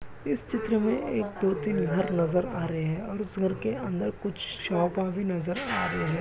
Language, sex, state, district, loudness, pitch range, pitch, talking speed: Hindi, male, Uttar Pradesh, Jalaun, -29 LUFS, 175-210 Hz, 190 Hz, 220 wpm